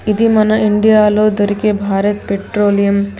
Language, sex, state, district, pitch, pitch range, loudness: Telugu, female, Telangana, Hyderabad, 210 Hz, 200-215 Hz, -13 LUFS